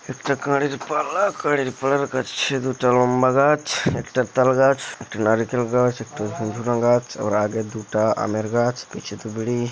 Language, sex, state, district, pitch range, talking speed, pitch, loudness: Bengali, male, West Bengal, Dakshin Dinajpur, 110-135 Hz, 160 wpm, 125 Hz, -21 LUFS